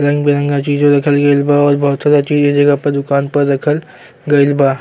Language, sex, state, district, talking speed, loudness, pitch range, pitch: Bhojpuri, male, Uttar Pradesh, Gorakhpur, 185 wpm, -13 LUFS, 140-145 Hz, 145 Hz